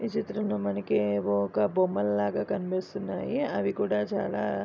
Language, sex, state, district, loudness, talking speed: Telugu, female, Andhra Pradesh, Visakhapatnam, -29 LUFS, 140 wpm